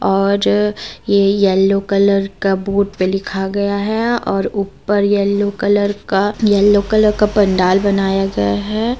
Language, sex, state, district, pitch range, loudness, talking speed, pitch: Hindi, female, Jharkhand, Deoghar, 195-205 Hz, -15 LUFS, 145 wpm, 200 Hz